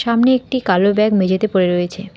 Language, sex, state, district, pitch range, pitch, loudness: Bengali, female, West Bengal, Alipurduar, 185-235 Hz, 200 Hz, -16 LUFS